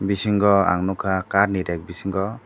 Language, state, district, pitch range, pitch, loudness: Kokborok, Tripura, Dhalai, 95-100 Hz, 95 Hz, -21 LUFS